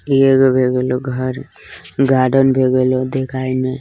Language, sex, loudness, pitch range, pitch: Bajjika, male, -15 LUFS, 130-135 Hz, 130 Hz